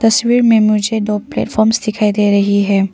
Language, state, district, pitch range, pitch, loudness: Hindi, Arunachal Pradesh, Papum Pare, 205-225 Hz, 215 Hz, -13 LUFS